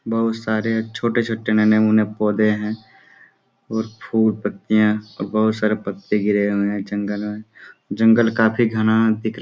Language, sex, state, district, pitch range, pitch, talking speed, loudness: Hindi, male, Jharkhand, Sahebganj, 105-110 Hz, 110 Hz, 165 wpm, -19 LUFS